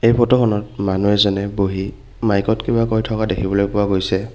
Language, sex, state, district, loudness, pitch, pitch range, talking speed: Assamese, male, Assam, Kamrup Metropolitan, -18 LUFS, 105 Hz, 100-115 Hz, 165 wpm